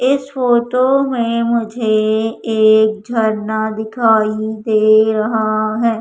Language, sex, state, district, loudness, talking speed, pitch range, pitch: Hindi, female, Madhya Pradesh, Umaria, -15 LUFS, 100 wpm, 215-235 Hz, 220 Hz